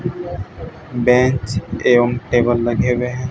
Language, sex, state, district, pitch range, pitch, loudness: Hindi, male, Bihar, Katihar, 120-125 Hz, 120 Hz, -17 LUFS